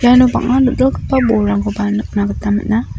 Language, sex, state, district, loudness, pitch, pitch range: Garo, female, Meghalaya, South Garo Hills, -15 LUFS, 220 Hz, 205-255 Hz